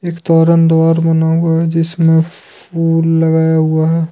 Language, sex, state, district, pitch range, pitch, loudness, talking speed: Hindi, male, Jharkhand, Ranchi, 160-165 Hz, 165 Hz, -12 LUFS, 115 wpm